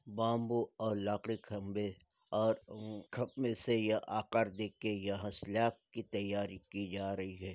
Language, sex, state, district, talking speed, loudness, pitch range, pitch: Hindi, male, Bihar, Gopalganj, 150 wpm, -38 LUFS, 100-115 Hz, 105 Hz